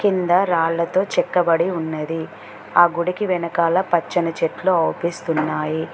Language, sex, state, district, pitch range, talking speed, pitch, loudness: Telugu, female, Telangana, Mahabubabad, 160-180 Hz, 100 wpm, 170 Hz, -20 LUFS